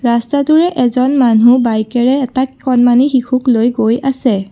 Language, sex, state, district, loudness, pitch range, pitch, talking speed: Assamese, female, Assam, Kamrup Metropolitan, -12 LUFS, 235-265 Hz, 250 Hz, 135 wpm